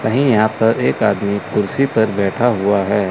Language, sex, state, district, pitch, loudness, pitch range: Hindi, male, Chandigarh, Chandigarh, 110 Hz, -16 LUFS, 100-115 Hz